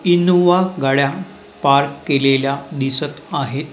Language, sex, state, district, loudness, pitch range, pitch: Marathi, male, Maharashtra, Mumbai Suburban, -17 LUFS, 140-175 Hz, 145 Hz